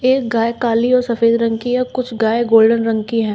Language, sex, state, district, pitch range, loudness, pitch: Hindi, female, Uttar Pradesh, Shamli, 225-245 Hz, -16 LUFS, 230 Hz